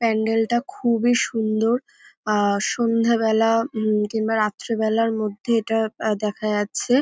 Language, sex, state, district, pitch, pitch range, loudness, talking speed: Bengali, female, West Bengal, North 24 Parganas, 225 Hz, 215-230 Hz, -21 LUFS, 110 wpm